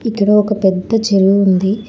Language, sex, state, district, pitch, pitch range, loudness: Telugu, female, Telangana, Hyderabad, 200 Hz, 195-215 Hz, -13 LUFS